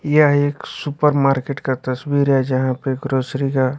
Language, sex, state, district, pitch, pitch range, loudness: Hindi, male, Bihar, West Champaran, 135 Hz, 130-145 Hz, -19 LUFS